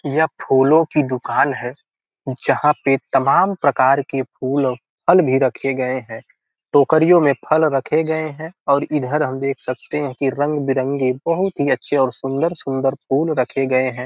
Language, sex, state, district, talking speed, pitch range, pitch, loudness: Hindi, male, Bihar, Gopalganj, 170 wpm, 130-150 Hz, 135 Hz, -18 LUFS